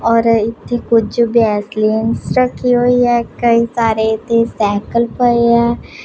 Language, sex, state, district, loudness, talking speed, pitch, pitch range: Punjabi, female, Punjab, Pathankot, -14 LUFS, 130 wpm, 230 Hz, 220-240 Hz